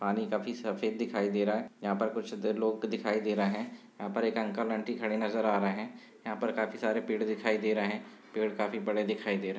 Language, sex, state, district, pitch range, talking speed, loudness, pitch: Hindi, male, Bihar, Gopalganj, 105-115 Hz, 260 wpm, -32 LUFS, 110 Hz